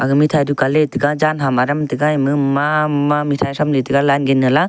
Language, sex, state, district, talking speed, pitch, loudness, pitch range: Wancho, male, Arunachal Pradesh, Longding, 215 wpm, 145 Hz, -16 LUFS, 135-150 Hz